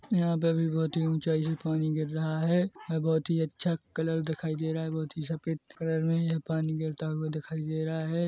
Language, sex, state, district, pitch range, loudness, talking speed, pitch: Hindi, male, Chhattisgarh, Korba, 160-165 Hz, -30 LUFS, 240 wpm, 160 Hz